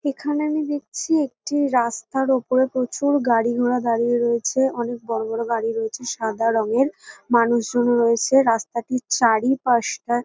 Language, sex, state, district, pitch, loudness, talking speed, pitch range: Bengali, female, West Bengal, North 24 Parganas, 240 Hz, -21 LUFS, 130 wpm, 230-265 Hz